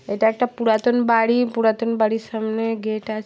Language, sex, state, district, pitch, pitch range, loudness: Bengali, female, West Bengal, Paschim Medinipur, 225 Hz, 220-230 Hz, -20 LUFS